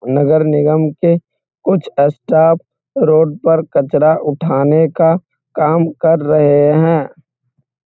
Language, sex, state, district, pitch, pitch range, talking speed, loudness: Hindi, male, Bihar, Muzaffarpur, 155 Hz, 145-165 Hz, 105 wpm, -13 LUFS